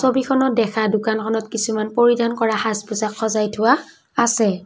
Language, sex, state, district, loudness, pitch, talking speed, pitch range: Assamese, female, Assam, Kamrup Metropolitan, -19 LUFS, 225 Hz, 130 wpm, 215-235 Hz